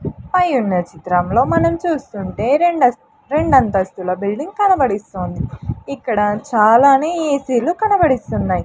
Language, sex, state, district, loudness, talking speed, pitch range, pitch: Telugu, female, Andhra Pradesh, Sri Satya Sai, -16 LUFS, 95 wpm, 200-320 Hz, 250 Hz